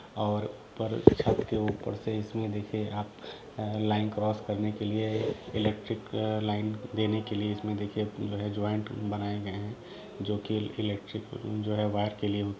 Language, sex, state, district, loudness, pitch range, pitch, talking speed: Hindi, male, Jharkhand, Sahebganj, -31 LUFS, 105-110 Hz, 105 Hz, 165 wpm